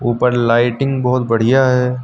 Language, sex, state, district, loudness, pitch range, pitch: Hindi, male, Uttar Pradesh, Lucknow, -15 LUFS, 120-130 Hz, 125 Hz